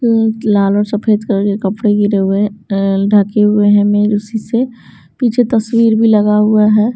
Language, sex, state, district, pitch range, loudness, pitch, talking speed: Hindi, female, Bihar, Patna, 205-225 Hz, -12 LUFS, 210 Hz, 180 wpm